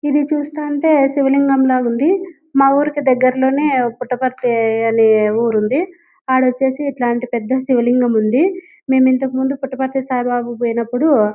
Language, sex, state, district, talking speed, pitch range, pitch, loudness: Telugu, female, Andhra Pradesh, Anantapur, 150 wpm, 245-285 Hz, 260 Hz, -16 LUFS